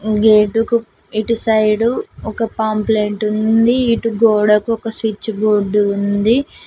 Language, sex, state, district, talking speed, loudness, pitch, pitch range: Telugu, female, Telangana, Mahabubabad, 115 wpm, -15 LUFS, 220 Hz, 210-225 Hz